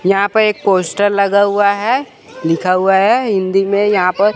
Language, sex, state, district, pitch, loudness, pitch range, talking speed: Hindi, male, Chandigarh, Chandigarh, 200 Hz, -14 LUFS, 190-205 Hz, 190 wpm